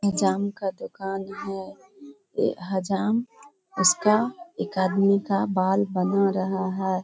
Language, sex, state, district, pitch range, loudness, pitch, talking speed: Hindi, female, Bihar, Kishanganj, 190-205 Hz, -25 LUFS, 195 Hz, 120 wpm